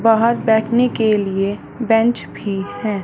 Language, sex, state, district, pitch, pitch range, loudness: Hindi, female, Punjab, Fazilka, 220 Hz, 205-230 Hz, -18 LUFS